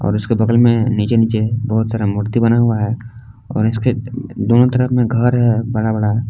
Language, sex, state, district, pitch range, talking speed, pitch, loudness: Hindi, male, Jharkhand, Palamu, 110-120 Hz, 200 wpm, 115 Hz, -16 LUFS